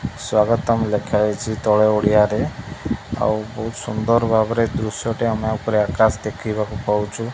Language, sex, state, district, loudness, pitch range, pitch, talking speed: Odia, male, Odisha, Malkangiri, -20 LUFS, 105-115 Hz, 110 Hz, 115 wpm